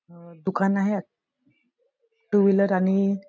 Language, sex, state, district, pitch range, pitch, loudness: Marathi, female, Maharashtra, Nagpur, 190-205 Hz, 195 Hz, -23 LUFS